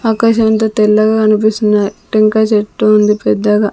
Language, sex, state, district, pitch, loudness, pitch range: Telugu, female, Andhra Pradesh, Sri Satya Sai, 215 Hz, -11 LUFS, 210-220 Hz